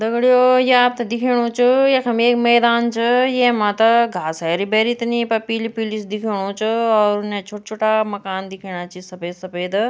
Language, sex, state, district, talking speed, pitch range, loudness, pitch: Garhwali, female, Uttarakhand, Tehri Garhwal, 165 wpm, 205-240 Hz, -17 LUFS, 225 Hz